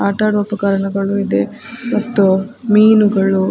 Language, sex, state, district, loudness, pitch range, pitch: Kannada, female, Karnataka, Dakshina Kannada, -15 LUFS, 195-215 Hz, 205 Hz